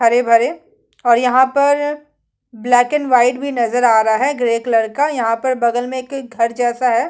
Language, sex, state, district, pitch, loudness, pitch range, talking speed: Hindi, female, Chhattisgarh, Kabirdham, 245 Hz, -15 LUFS, 235-265 Hz, 185 wpm